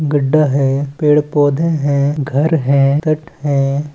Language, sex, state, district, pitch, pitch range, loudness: Chhattisgarhi, male, Chhattisgarh, Balrampur, 145 Hz, 140-150 Hz, -14 LUFS